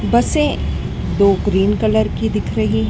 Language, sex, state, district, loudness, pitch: Hindi, female, Madhya Pradesh, Dhar, -17 LUFS, 195 Hz